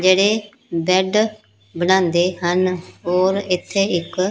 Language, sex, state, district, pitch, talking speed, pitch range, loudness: Punjabi, female, Punjab, Pathankot, 185 Hz, 95 wpm, 175-195 Hz, -19 LUFS